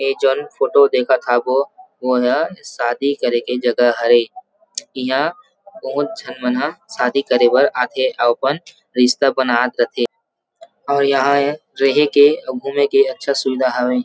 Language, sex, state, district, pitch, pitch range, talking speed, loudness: Chhattisgarhi, male, Chhattisgarh, Rajnandgaon, 135 Hz, 125-145 Hz, 145 wpm, -17 LUFS